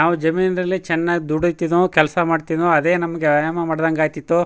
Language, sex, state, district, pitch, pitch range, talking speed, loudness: Kannada, male, Karnataka, Chamarajanagar, 170 Hz, 160-175 Hz, 160 wpm, -18 LUFS